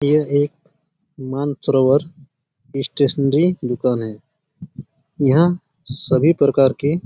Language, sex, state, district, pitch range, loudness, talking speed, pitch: Hindi, male, Chhattisgarh, Bastar, 135-160 Hz, -18 LUFS, 95 wpm, 140 Hz